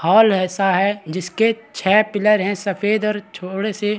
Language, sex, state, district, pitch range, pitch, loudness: Hindi, male, Chhattisgarh, Bastar, 190-215 Hz, 205 Hz, -18 LUFS